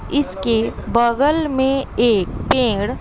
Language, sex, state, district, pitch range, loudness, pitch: Hindi, female, Bihar, West Champaran, 215-270 Hz, -18 LUFS, 235 Hz